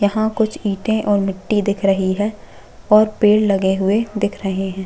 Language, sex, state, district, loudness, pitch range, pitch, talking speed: Hindi, female, Chhattisgarh, Bastar, -17 LUFS, 195-215 Hz, 205 Hz, 185 wpm